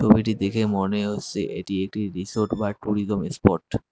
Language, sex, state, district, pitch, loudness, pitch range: Bengali, male, West Bengal, Cooch Behar, 105 Hz, -24 LUFS, 100-105 Hz